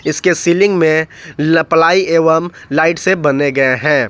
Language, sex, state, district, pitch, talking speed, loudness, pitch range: Hindi, male, Jharkhand, Ranchi, 165 Hz, 145 wpm, -13 LUFS, 155-175 Hz